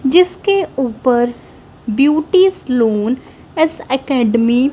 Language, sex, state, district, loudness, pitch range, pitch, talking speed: Hindi, female, Punjab, Kapurthala, -15 LUFS, 240-320 Hz, 265 Hz, 90 wpm